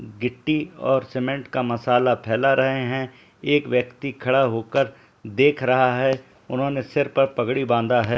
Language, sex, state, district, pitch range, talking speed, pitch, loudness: Hindi, male, Jharkhand, Jamtara, 125-135 Hz, 145 wpm, 130 Hz, -22 LUFS